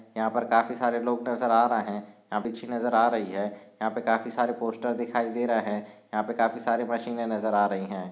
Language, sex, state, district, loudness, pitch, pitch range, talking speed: Hindi, male, Maharashtra, Chandrapur, -27 LUFS, 115 Hz, 105-120 Hz, 235 wpm